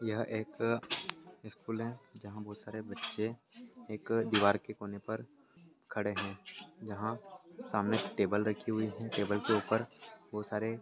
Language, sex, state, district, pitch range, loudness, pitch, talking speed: Hindi, male, Bihar, Lakhisarai, 105-115 Hz, -36 LUFS, 110 Hz, 150 wpm